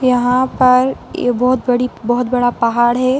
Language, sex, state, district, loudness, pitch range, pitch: Hindi, female, Uttar Pradesh, Hamirpur, -15 LUFS, 245-255 Hz, 250 Hz